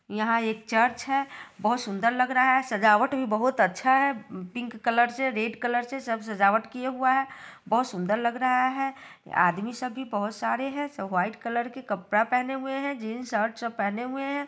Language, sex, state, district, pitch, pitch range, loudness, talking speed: Hindi, female, Bihar, Sitamarhi, 240 Hz, 215-260 Hz, -26 LUFS, 210 wpm